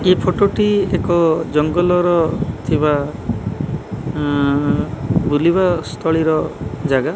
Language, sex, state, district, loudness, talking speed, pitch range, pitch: Odia, male, Odisha, Malkangiri, -17 LUFS, 65 wpm, 145-175 Hz, 160 Hz